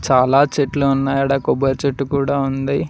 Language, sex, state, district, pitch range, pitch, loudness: Telugu, male, Telangana, Mahabubabad, 135-140 Hz, 140 Hz, -17 LUFS